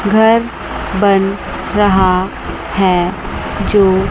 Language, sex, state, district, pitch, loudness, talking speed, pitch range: Hindi, female, Chandigarh, Chandigarh, 195 Hz, -14 LUFS, 75 wpm, 185-205 Hz